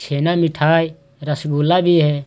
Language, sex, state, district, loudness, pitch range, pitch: Hindi, male, Bihar, Jahanabad, -17 LUFS, 145-165 Hz, 155 Hz